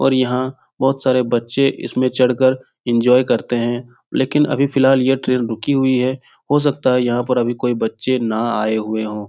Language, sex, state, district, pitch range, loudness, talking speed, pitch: Hindi, male, Bihar, Jahanabad, 120-130 Hz, -17 LUFS, 200 wpm, 125 Hz